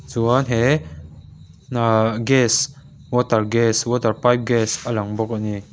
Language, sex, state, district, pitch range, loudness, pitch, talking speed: Mizo, male, Mizoram, Aizawl, 110-125 Hz, -19 LUFS, 115 Hz, 145 wpm